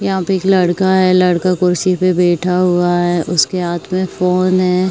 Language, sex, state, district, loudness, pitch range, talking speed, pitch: Hindi, female, Uttar Pradesh, Jyotiba Phule Nagar, -14 LUFS, 175-185 Hz, 195 wpm, 180 Hz